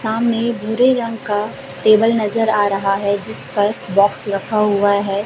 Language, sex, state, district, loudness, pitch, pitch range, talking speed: Hindi, female, Chhattisgarh, Raipur, -17 LUFS, 210 Hz, 200-225 Hz, 170 wpm